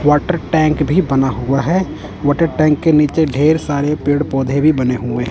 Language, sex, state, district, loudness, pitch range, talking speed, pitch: Hindi, male, Punjab, Kapurthala, -15 LUFS, 135-155 Hz, 190 wpm, 150 Hz